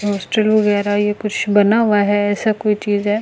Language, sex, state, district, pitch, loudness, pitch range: Hindi, female, Delhi, New Delhi, 205 Hz, -16 LUFS, 205-215 Hz